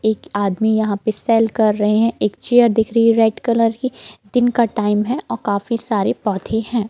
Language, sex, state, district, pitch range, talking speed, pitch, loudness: Hindi, female, Jharkhand, Jamtara, 210-235 Hz, 220 wpm, 225 Hz, -17 LUFS